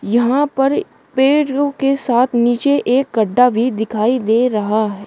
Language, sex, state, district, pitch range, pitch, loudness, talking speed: Hindi, female, Uttar Pradesh, Shamli, 225-270 Hz, 245 Hz, -16 LUFS, 165 wpm